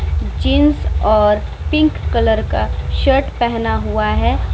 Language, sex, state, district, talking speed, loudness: Hindi, female, Bihar, Vaishali, 130 wpm, -16 LUFS